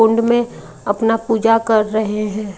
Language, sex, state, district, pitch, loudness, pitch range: Hindi, female, Odisha, Malkangiri, 225 Hz, -16 LUFS, 215-225 Hz